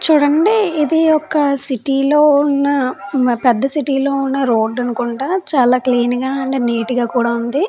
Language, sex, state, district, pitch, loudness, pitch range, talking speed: Telugu, female, Andhra Pradesh, Chittoor, 270 Hz, -15 LUFS, 245-295 Hz, 150 wpm